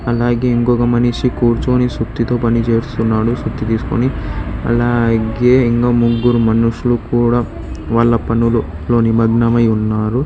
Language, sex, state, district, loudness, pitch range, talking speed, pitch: Telugu, male, Telangana, Hyderabad, -15 LUFS, 115-120 Hz, 110 wpm, 115 Hz